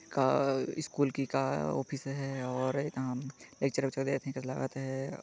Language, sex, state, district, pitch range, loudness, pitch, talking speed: Chhattisgarhi, male, Chhattisgarh, Jashpur, 130-135 Hz, -34 LUFS, 135 Hz, 115 wpm